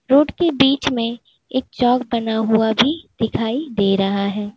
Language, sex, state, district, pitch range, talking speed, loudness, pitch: Hindi, female, Uttar Pradesh, Lalitpur, 220-270 Hz, 170 wpm, -18 LUFS, 240 Hz